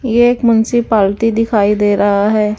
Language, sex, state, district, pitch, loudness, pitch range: Hindi, female, Bihar, West Champaran, 220 Hz, -13 LUFS, 205-230 Hz